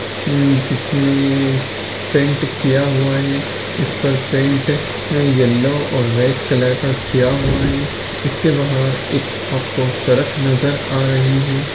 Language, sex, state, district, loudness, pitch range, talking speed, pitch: Hindi, male, Chhattisgarh, Raigarh, -17 LUFS, 130-140 Hz, 115 wpm, 135 Hz